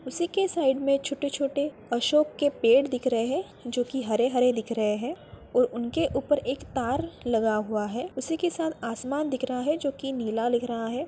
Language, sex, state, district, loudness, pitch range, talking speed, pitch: Hindi, female, Bihar, Madhepura, -27 LUFS, 240-290 Hz, 200 wpm, 260 Hz